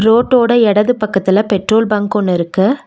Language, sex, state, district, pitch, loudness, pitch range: Tamil, female, Tamil Nadu, Nilgiris, 210 Hz, -13 LUFS, 195-230 Hz